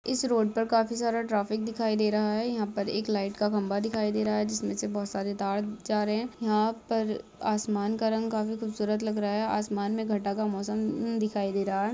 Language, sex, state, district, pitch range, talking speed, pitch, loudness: Hindi, female, Jharkhand, Jamtara, 205-220 Hz, 230 wpm, 215 Hz, -29 LUFS